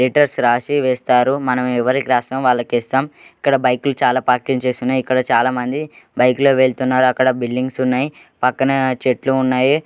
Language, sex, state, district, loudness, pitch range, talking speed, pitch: Telugu, male, Andhra Pradesh, Guntur, -17 LUFS, 125-135 Hz, 160 wpm, 130 Hz